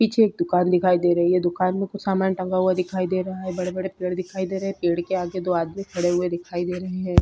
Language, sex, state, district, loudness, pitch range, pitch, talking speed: Hindi, female, Bihar, Vaishali, -23 LUFS, 180-190 Hz, 185 Hz, 285 wpm